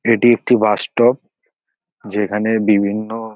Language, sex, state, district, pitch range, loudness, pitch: Bengali, male, West Bengal, North 24 Parganas, 105-120 Hz, -16 LUFS, 110 Hz